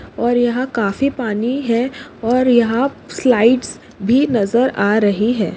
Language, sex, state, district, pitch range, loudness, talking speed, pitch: Hindi, female, Maharashtra, Pune, 225-260 Hz, -16 LUFS, 140 wpm, 240 Hz